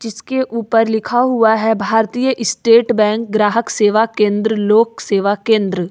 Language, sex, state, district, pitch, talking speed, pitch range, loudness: Hindi, female, Jharkhand, Ranchi, 225 Hz, 140 wpm, 210-230 Hz, -15 LUFS